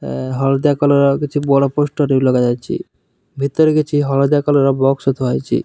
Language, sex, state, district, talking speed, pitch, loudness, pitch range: Odia, male, Odisha, Nuapada, 180 wpm, 140 Hz, -15 LUFS, 135-145 Hz